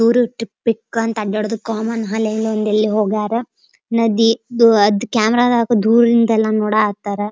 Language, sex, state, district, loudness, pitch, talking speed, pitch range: Kannada, female, Karnataka, Dharwad, -16 LUFS, 220 Hz, 130 wpm, 215-230 Hz